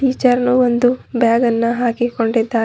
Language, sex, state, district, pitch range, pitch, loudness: Kannada, female, Karnataka, Bidar, 230-250 Hz, 240 Hz, -16 LUFS